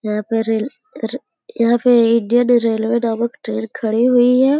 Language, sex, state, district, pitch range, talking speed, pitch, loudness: Hindi, female, Uttar Pradesh, Gorakhpur, 225-245 Hz, 155 wpm, 230 Hz, -16 LUFS